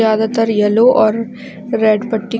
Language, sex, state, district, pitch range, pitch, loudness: Hindi, female, Chhattisgarh, Bastar, 215-230 Hz, 225 Hz, -14 LUFS